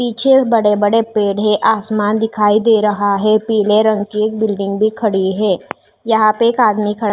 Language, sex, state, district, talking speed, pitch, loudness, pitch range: Hindi, female, Maharashtra, Mumbai Suburban, 200 wpm, 215 Hz, -14 LUFS, 210-220 Hz